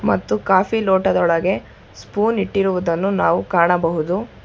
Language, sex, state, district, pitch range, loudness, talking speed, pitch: Kannada, female, Karnataka, Bangalore, 170-200 Hz, -18 LUFS, 95 wpm, 190 Hz